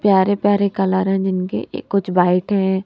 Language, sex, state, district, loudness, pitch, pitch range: Hindi, female, Punjab, Kapurthala, -18 LUFS, 190 Hz, 190-200 Hz